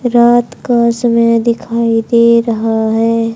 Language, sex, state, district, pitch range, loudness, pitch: Hindi, male, Haryana, Charkhi Dadri, 230-235 Hz, -12 LUFS, 235 Hz